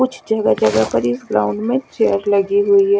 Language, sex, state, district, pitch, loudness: Hindi, female, Chandigarh, Chandigarh, 200 Hz, -16 LUFS